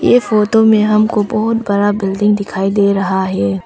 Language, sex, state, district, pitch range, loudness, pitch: Hindi, female, Arunachal Pradesh, Longding, 195-215 Hz, -13 LUFS, 205 Hz